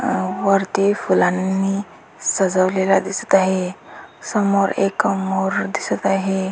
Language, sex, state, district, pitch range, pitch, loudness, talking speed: Marathi, female, Maharashtra, Dhule, 190-195 Hz, 195 Hz, -19 LUFS, 100 wpm